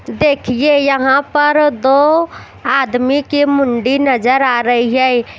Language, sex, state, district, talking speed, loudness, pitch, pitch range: Hindi, female, Chandigarh, Chandigarh, 120 wpm, -13 LUFS, 270 Hz, 255-290 Hz